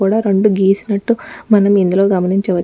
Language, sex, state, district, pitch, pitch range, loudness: Telugu, female, Telangana, Nalgonda, 200 Hz, 195-210 Hz, -14 LUFS